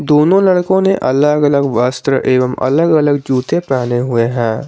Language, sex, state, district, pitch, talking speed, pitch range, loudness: Hindi, male, Jharkhand, Garhwa, 140 Hz, 165 wpm, 125-155 Hz, -13 LUFS